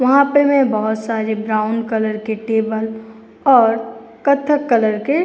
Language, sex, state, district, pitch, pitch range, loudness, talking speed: Hindi, female, Uttar Pradesh, Etah, 225 Hz, 220-270 Hz, -17 LUFS, 150 wpm